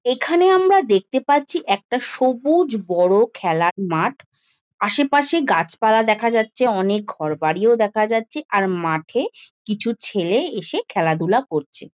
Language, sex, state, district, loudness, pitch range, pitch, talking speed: Bengali, female, West Bengal, Jhargram, -19 LUFS, 185-265 Hz, 220 Hz, 120 wpm